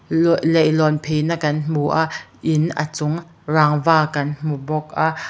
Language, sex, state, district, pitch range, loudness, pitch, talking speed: Mizo, female, Mizoram, Aizawl, 150-160 Hz, -19 LUFS, 155 Hz, 160 wpm